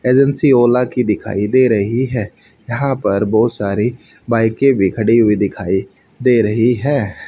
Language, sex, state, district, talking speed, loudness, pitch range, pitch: Hindi, male, Haryana, Rohtak, 155 wpm, -15 LUFS, 105-125 Hz, 115 Hz